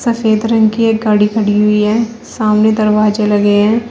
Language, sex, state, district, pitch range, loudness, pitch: Hindi, female, Uttar Pradesh, Shamli, 210-225 Hz, -12 LUFS, 215 Hz